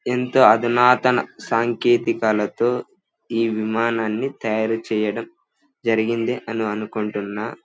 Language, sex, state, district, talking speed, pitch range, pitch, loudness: Telugu, male, Andhra Pradesh, Anantapur, 80 wpm, 110-120 Hz, 115 Hz, -20 LUFS